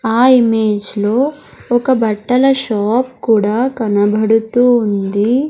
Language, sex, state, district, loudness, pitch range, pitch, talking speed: Telugu, male, Andhra Pradesh, Sri Satya Sai, -14 LUFS, 210-250 Hz, 230 Hz, 100 wpm